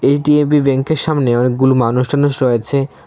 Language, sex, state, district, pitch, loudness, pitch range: Bengali, male, Tripura, West Tripura, 135 Hz, -14 LUFS, 125-145 Hz